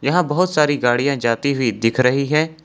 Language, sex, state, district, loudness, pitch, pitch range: Hindi, male, Jharkhand, Ranchi, -18 LUFS, 140 Hz, 125-150 Hz